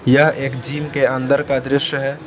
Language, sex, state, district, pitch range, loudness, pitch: Hindi, male, Jharkhand, Palamu, 135-145 Hz, -18 LUFS, 140 Hz